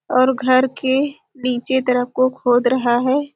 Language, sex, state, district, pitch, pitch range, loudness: Hindi, female, Chhattisgarh, Sarguja, 255 Hz, 250-265 Hz, -18 LUFS